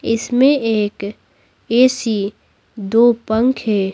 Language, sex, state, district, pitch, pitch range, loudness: Hindi, female, Bihar, Patna, 225 Hz, 210-245 Hz, -16 LUFS